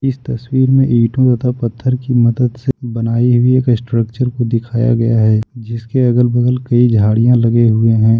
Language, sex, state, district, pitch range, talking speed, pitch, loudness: Hindi, male, Jharkhand, Ranchi, 115-125 Hz, 175 wpm, 120 Hz, -13 LUFS